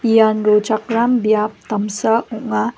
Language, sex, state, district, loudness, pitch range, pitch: Garo, female, Meghalaya, West Garo Hills, -17 LUFS, 210-225 Hz, 220 Hz